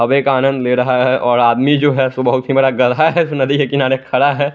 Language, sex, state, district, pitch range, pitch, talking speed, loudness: Hindi, male, Chandigarh, Chandigarh, 125-140 Hz, 135 Hz, 290 wpm, -14 LUFS